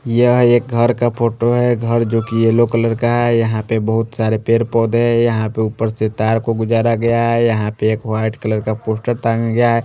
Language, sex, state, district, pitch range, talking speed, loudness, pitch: Hindi, male, Chandigarh, Chandigarh, 110-120 Hz, 235 wpm, -16 LUFS, 115 Hz